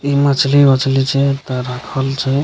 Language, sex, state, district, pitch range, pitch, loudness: Maithili, male, Bihar, Begusarai, 135-140 Hz, 135 Hz, -15 LUFS